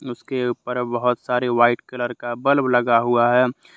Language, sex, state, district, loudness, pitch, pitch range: Hindi, male, Jharkhand, Deoghar, -20 LUFS, 125 Hz, 120-125 Hz